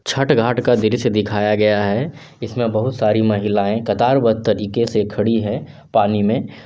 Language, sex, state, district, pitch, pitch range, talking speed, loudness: Hindi, male, Bihar, Sitamarhi, 110 Hz, 105-120 Hz, 160 wpm, -17 LUFS